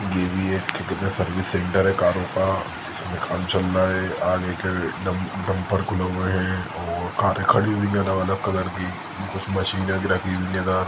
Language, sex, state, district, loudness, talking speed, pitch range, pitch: Hindi, male, Chhattisgarh, Sukma, -24 LUFS, 175 wpm, 90-95 Hz, 95 Hz